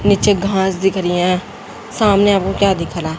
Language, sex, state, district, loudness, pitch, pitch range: Hindi, female, Haryana, Jhajjar, -15 LUFS, 195 Hz, 180-200 Hz